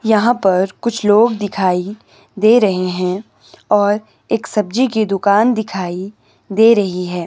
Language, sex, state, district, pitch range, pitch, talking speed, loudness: Hindi, male, Himachal Pradesh, Shimla, 185-220 Hz, 205 Hz, 140 wpm, -15 LUFS